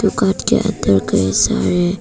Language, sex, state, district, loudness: Hindi, female, Arunachal Pradesh, Papum Pare, -16 LUFS